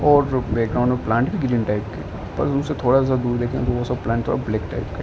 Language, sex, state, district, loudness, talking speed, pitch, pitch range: Hindi, male, Uttar Pradesh, Ghazipur, -21 LUFS, 260 wpm, 120 Hz, 110-130 Hz